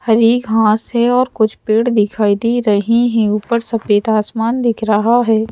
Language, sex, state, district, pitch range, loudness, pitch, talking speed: Hindi, female, Madhya Pradesh, Bhopal, 215-235 Hz, -14 LUFS, 225 Hz, 175 wpm